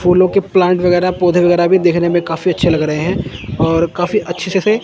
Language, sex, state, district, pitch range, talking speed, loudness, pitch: Hindi, male, Chandigarh, Chandigarh, 170-185 Hz, 225 wpm, -14 LUFS, 175 Hz